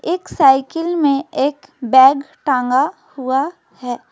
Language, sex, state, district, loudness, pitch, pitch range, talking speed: Hindi, female, West Bengal, Alipurduar, -16 LUFS, 275 Hz, 265-325 Hz, 115 wpm